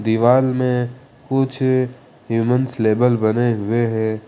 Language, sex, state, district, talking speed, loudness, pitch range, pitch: Hindi, male, Jharkhand, Ranchi, 110 wpm, -18 LUFS, 115-130 Hz, 120 Hz